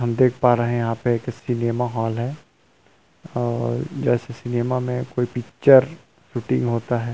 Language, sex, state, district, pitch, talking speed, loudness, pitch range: Hindi, male, Chhattisgarh, Rajnandgaon, 120 Hz, 160 wpm, -21 LUFS, 120-125 Hz